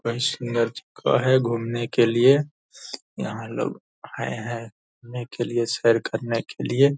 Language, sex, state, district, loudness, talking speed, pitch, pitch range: Hindi, male, Bihar, Purnia, -24 LUFS, 145 wpm, 120 Hz, 115-130 Hz